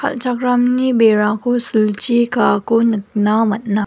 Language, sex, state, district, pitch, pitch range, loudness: Garo, female, Meghalaya, West Garo Hills, 230 Hz, 210-245 Hz, -15 LUFS